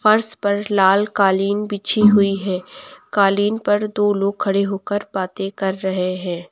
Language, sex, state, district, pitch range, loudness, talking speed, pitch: Hindi, female, Uttar Pradesh, Lucknow, 190-205 Hz, -19 LUFS, 155 wpm, 200 Hz